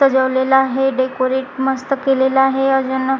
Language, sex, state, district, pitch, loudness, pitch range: Marathi, female, Maharashtra, Gondia, 265 Hz, -16 LUFS, 260-270 Hz